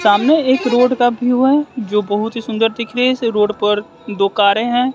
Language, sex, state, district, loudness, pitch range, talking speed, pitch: Hindi, male, Bihar, West Champaran, -15 LUFS, 210-250 Hz, 230 wpm, 235 Hz